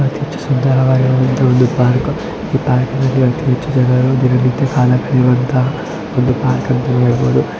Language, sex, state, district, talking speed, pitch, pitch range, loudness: Kannada, male, Karnataka, Shimoga, 150 wpm, 130 Hz, 125-135 Hz, -14 LUFS